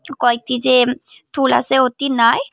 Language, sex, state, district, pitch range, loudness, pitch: Bengali, female, Tripura, Unakoti, 245-270 Hz, -16 LUFS, 255 Hz